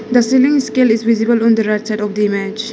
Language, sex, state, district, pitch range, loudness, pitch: English, female, Arunachal Pradesh, Lower Dibang Valley, 215-240 Hz, -14 LUFS, 225 Hz